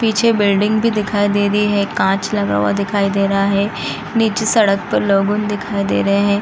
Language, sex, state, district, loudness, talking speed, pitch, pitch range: Hindi, female, Bihar, East Champaran, -16 LUFS, 225 wpm, 205 Hz, 200-210 Hz